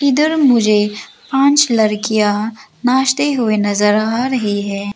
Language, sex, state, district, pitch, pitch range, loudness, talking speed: Hindi, female, Arunachal Pradesh, Lower Dibang Valley, 225 Hz, 210-265 Hz, -15 LUFS, 120 wpm